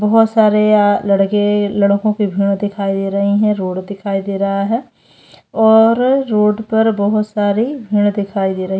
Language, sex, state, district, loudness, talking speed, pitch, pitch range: Hindi, female, Chhattisgarh, Bastar, -15 LUFS, 170 wpm, 205 Hz, 200-215 Hz